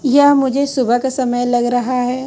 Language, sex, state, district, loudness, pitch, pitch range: Hindi, female, Chhattisgarh, Raipur, -15 LUFS, 255 Hz, 245-270 Hz